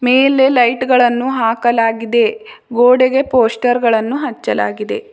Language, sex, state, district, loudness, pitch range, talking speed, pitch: Kannada, female, Karnataka, Bidar, -14 LUFS, 230-265 Hz, 80 wpm, 245 Hz